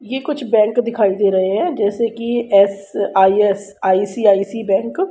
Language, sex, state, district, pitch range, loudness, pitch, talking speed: Hindi, female, Haryana, Rohtak, 200-230 Hz, -16 LUFS, 205 Hz, 140 wpm